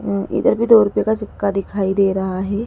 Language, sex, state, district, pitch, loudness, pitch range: Hindi, female, Madhya Pradesh, Dhar, 200 Hz, -17 LUFS, 195-215 Hz